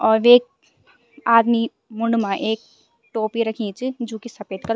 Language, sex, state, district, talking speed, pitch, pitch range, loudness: Garhwali, female, Uttarakhand, Tehri Garhwal, 175 wpm, 230 Hz, 220-235 Hz, -20 LUFS